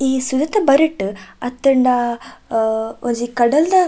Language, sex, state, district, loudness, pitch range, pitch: Tulu, female, Karnataka, Dakshina Kannada, -17 LUFS, 235-280 Hz, 250 Hz